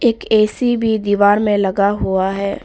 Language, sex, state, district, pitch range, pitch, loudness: Hindi, female, Arunachal Pradesh, Papum Pare, 200-220 Hz, 205 Hz, -16 LUFS